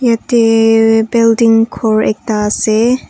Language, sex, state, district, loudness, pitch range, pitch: Nagamese, female, Nagaland, Kohima, -11 LUFS, 220-230 Hz, 225 Hz